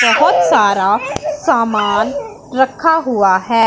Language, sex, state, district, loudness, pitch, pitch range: Hindi, female, Punjab, Pathankot, -14 LUFS, 225 Hz, 195-265 Hz